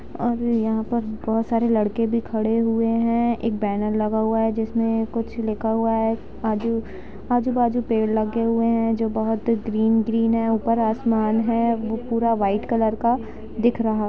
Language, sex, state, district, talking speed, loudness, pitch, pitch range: Hindi, female, Jharkhand, Jamtara, 175 wpm, -22 LUFS, 225 Hz, 220-230 Hz